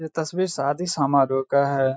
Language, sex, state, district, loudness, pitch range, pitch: Hindi, male, Bihar, Saharsa, -22 LUFS, 135-160 Hz, 140 Hz